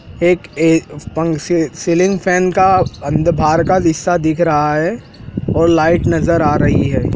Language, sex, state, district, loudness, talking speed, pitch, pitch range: Hindi, male, Madhya Pradesh, Dhar, -14 LUFS, 165 wpm, 165 Hz, 155-175 Hz